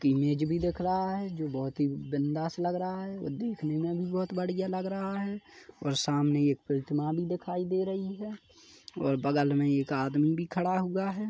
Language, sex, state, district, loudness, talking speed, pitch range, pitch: Hindi, male, Chhattisgarh, Kabirdham, -31 LUFS, 205 wpm, 145-185 Hz, 170 Hz